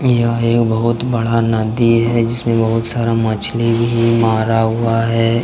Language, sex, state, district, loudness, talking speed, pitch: Hindi, male, Jharkhand, Deoghar, -15 LUFS, 155 wpm, 115 Hz